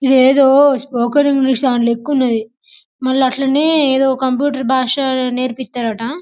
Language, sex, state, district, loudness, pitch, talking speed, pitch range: Telugu, female, Telangana, Karimnagar, -14 LUFS, 260 Hz, 135 wpm, 250-275 Hz